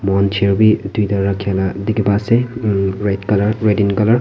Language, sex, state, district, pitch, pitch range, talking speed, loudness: Nagamese, male, Nagaland, Kohima, 100 Hz, 100-110 Hz, 225 wpm, -16 LUFS